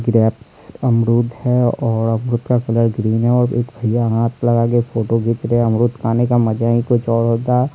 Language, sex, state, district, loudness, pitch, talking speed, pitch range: Hindi, male, Bihar, Supaul, -17 LUFS, 115 Hz, 215 wpm, 115-120 Hz